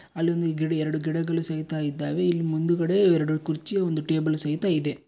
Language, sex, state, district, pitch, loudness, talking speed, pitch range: Kannada, male, Karnataka, Bellary, 160 Hz, -25 LUFS, 165 wpm, 155-170 Hz